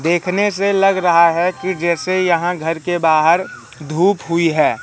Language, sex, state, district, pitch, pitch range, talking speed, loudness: Hindi, male, Madhya Pradesh, Katni, 175 Hz, 165-185 Hz, 175 wpm, -16 LUFS